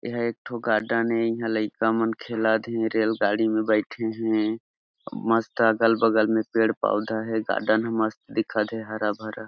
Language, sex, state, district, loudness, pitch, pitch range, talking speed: Chhattisgarhi, male, Chhattisgarh, Jashpur, -24 LUFS, 110 Hz, 110-115 Hz, 160 wpm